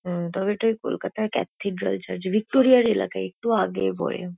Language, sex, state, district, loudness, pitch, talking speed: Bengali, female, West Bengal, Kolkata, -24 LUFS, 190 Hz, 165 wpm